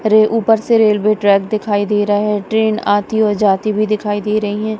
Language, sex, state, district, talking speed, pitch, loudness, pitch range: Hindi, female, Punjab, Kapurthala, 225 wpm, 215 Hz, -15 LUFS, 205-215 Hz